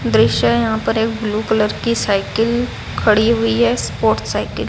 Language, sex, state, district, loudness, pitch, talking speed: Hindi, female, Odisha, Sambalpur, -17 LUFS, 220 Hz, 190 wpm